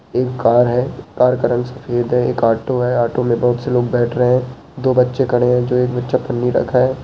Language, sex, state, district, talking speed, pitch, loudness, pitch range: Hindi, male, Uttarakhand, Uttarkashi, 245 wpm, 125 Hz, -16 LUFS, 120-125 Hz